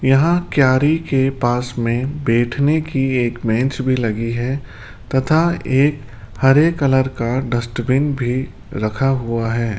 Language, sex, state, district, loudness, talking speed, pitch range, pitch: Hindi, male, Rajasthan, Jaipur, -18 LUFS, 135 wpm, 120-140 Hz, 130 Hz